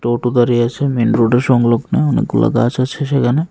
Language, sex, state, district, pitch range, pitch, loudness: Bengali, male, Tripura, West Tripura, 120-140 Hz, 125 Hz, -15 LUFS